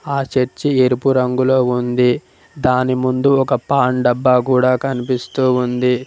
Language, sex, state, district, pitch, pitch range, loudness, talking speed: Telugu, male, Telangana, Mahabubabad, 130 Hz, 125-130 Hz, -16 LUFS, 130 wpm